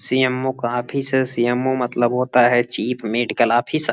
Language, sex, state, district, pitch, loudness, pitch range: Hindi, male, Uttar Pradesh, Gorakhpur, 120 Hz, -19 LUFS, 120-130 Hz